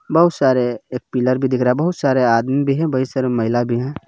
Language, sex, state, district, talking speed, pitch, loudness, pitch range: Hindi, male, Jharkhand, Garhwa, 265 wpm, 130 Hz, -18 LUFS, 125-140 Hz